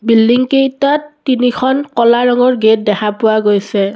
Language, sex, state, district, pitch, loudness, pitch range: Assamese, female, Assam, Kamrup Metropolitan, 245 Hz, -12 LUFS, 220-260 Hz